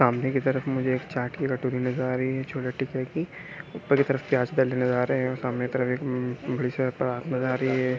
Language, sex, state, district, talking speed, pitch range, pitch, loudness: Hindi, male, Maharashtra, Pune, 245 wpm, 125-135 Hz, 130 Hz, -27 LUFS